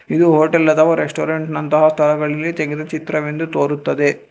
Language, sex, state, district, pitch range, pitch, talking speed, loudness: Kannada, male, Karnataka, Bangalore, 150-160 Hz, 155 Hz, 125 wpm, -16 LUFS